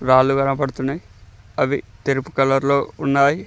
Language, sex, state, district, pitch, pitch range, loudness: Telugu, male, Telangana, Mahabubabad, 135 Hz, 130-140 Hz, -19 LUFS